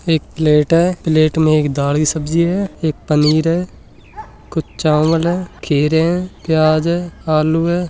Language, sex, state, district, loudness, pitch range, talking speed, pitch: Hindi, male, Rajasthan, Nagaur, -16 LUFS, 155-170 Hz, 165 wpm, 160 Hz